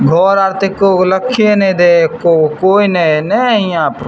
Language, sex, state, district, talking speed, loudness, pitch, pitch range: Maithili, male, Bihar, Samastipur, 235 wpm, -11 LUFS, 190 Hz, 175-200 Hz